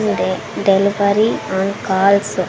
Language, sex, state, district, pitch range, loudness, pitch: Telugu, female, Andhra Pradesh, Sri Satya Sai, 190-200 Hz, -16 LUFS, 200 Hz